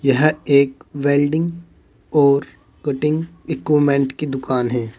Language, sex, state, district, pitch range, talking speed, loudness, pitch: Hindi, male, Uttar Pradesh, Saharanpur, 135-150 Hz, 110 wpm, -19 LUFS, 145 Hz